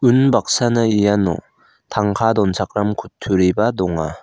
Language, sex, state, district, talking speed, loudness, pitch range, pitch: Garo, male, Meghalaya, South Garo Hills, 85 wpm, -17 LUFS, 95-115 Hz, 105 Hz